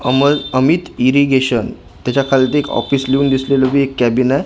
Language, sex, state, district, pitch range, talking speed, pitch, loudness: Marathi, male, Maharashtra, Gondia, 130-140 Hz, 190 wpm, 135 Hz, -14 LUFS